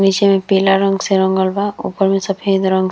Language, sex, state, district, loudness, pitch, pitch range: Bhojpuri, female, Uttar Pradesh, Gorakhpur, -15 LUFS, 195 Hz, 190-195 Hz